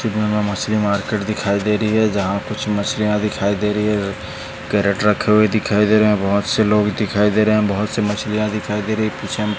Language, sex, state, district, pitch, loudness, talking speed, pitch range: Hindi, male, Maharashtra, Dhule, 105 Hz, -18 LUFS, 230 wpm, 105-110 Hz